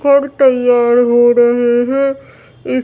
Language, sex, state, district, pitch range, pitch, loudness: Hindi, female, Bihar, Katihar, 240-275 Hz, 245 Hz, -12 LUFS